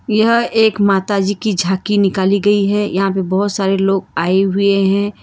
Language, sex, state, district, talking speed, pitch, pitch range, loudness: Hindi, female, Karnataka, Bangalore, 185 wpm, 200 Hz, 195-205 Hz, -15 LUFS